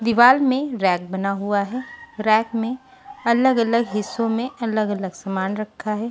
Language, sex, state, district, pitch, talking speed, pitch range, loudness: Hindi, female, Punjab, Pathankot, 230 Hz, 145 wpm, 205-250 Hz, -21 LUFS